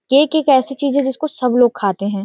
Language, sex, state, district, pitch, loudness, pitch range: Hindi, female, Chhattisgarh, Rajnandgaon, 265 Hz, -16 LUFS, 235-280 Hz